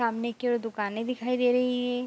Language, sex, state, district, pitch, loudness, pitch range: Hindi, female, Bihar, Kishanganj, 245 Hz, -28 LUFS, 230-250 Hz